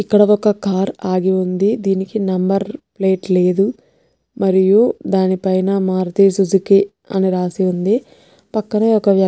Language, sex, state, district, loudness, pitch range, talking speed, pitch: Telugu, female, Telangana, Nalgonda, -16 LUFS, 190-210 Hz, 130 wpm, 195 Hz